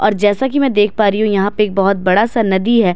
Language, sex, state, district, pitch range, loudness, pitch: Hindi, female, Bihar, Katihar, 200-225 Hz, -14 LUFS, 210 Hz